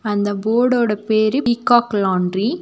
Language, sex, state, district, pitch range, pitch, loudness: Tamil, female, Tamil Nadu, Nilgiris, 205-240 Hz, 220 Hz, -17 LUFS